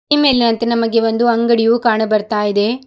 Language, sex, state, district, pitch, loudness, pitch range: Kannada, female, Karnataka, Bidar, 230 Hz, -14 LUFS, 220-235 Hz